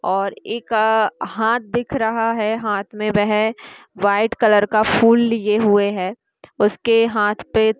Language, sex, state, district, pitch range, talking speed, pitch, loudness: Hindi, female, Uttar Pradesh, Hamirpur, 210-230 Hz, 160 wpm, 220 Hz, -18 LUFS